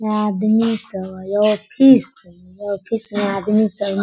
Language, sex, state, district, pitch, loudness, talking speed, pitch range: Hindi, female, Bihar, Sitamarhi, 205 Hz, -17 LUFS, 150 wpm, 195-215 Hz